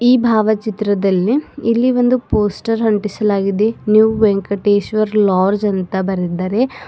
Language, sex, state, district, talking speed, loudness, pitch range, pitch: Kannada, female, Karnataka, Bidar, 95 wpm, -15 LUFS, 200-225 Hz, 210 Hz